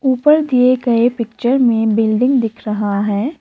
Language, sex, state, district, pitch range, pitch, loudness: Hindi, female, Assam, Kamrup Metropolitan, 220-255 Hz, 240 Hz, -15 LUFS